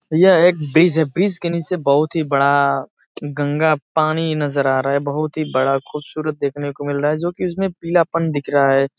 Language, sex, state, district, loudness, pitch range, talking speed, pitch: Hindi, male, Uttar Pradesh, Ghazipur, -18 LUFS, 140-165 Hz, 215 wpm, 150 Hz